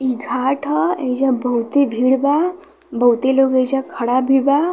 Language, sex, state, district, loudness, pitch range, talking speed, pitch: Bhojpuri, female, Uttar Pradesh, Varanasi, -17 LUFS, 250-285 Hz, 165 wpm, 265 Hz